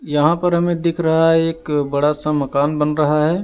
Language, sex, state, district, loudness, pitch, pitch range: Hindi, male, Delhi, New Delhi, -17 LUFS, 155 Hz, 150-165 Hz